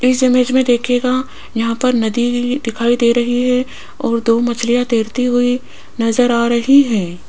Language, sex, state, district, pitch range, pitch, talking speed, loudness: Hindi, female, Rajasthan, Jaipur, 235-250 Hz, 245 Hz, 165 wpm, -15 LUFS